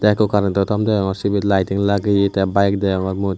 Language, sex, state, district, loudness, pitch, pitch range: Chakma, male, Tripura, West Tripura, -18 LUFS, 100 Hz, 95-100 Hz